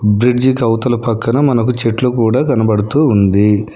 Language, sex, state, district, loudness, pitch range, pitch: Telugu, male, Telangana, Hyderabad, -13 LUFS, 105-125 Hz, 115 Hz